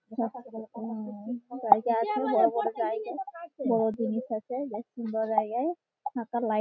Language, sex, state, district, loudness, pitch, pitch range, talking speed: Bengali, female, West Bengal, Malda, -30 LUFS, 235 Hz, 220-255 Hz, 125 wpm